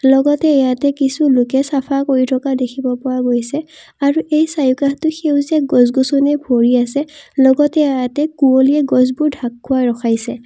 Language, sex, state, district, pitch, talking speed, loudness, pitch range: Assamese, female, Assam, Kamrup Metropolitan, 270 Hz, 135 wpm, -15 LUFS, 255-290 Hz